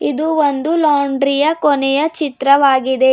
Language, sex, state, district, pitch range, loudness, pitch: Kannada, female, Karnataka, Bidar, 275-305 Hz, -14 LUFS, 285 Hz